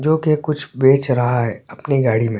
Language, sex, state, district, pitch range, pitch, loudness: Hindi, male, Chhattisgarh, Korba, 120-150 Hz, 135 Hz, -17 LUFS